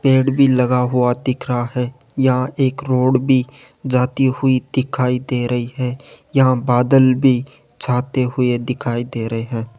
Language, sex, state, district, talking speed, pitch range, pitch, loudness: Hindi, male, Rajasthan, Jaipur, 160 wpm, 125-130 Hz, 125 Hz, -17 LUFS